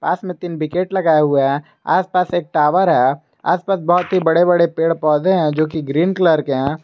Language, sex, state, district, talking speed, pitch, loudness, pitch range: Hindi, male, Jharkhand, Garhwa, 220 wpm, 165 Hz, -16 LUFS, 155-180 Hz